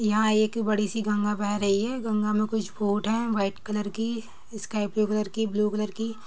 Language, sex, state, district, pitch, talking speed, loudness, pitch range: Hindi, female, Uttar Pradesh, Jyotiba Phule Nagar, 215 Hz, 220 wpm, -27 LUFS, 210-220 Hz